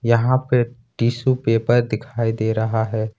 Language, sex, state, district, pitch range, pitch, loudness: Hindi, male, Jharkhand, Ranchi, 110-120 Hz, 115 Hz, -20 LUFS